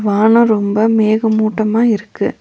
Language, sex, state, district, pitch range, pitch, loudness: Tamil, female, Tamil Nadu, Nilgiris, 215-225 Hz, 220 Hz, -13 LUFS